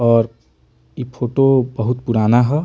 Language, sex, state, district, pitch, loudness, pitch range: Bhojpuri, male, Bihar, Muzaffarpur, 120 Hz, -17 LUFS, 115-130 Hz